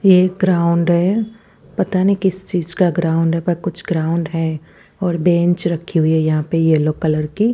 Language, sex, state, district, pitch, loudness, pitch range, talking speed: Hindi, female, Punjab, Fazilka, 170 Hz, -17 LUFS, 165-185 Hz, 200 wpm